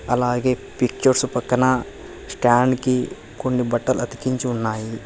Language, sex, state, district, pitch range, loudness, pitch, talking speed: Telugu, male, Telangana, Hyderabad, 120-130 Hz, -21 LUFS, 125 Hz, 105 wpm